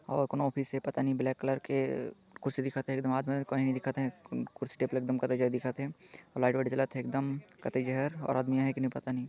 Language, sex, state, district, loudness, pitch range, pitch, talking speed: Chhattisgarhi, male, Chhattisgarh, Jashpur, -33 LUFS, 130-135 Hz, 135 Hz, 220 wpm